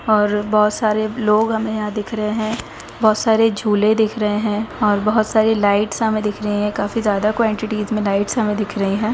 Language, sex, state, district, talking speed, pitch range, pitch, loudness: Hindi, female, Bihar, Darbhanga, 210 wpm, 210-220 Hz, 215 Hz, -18 LUFS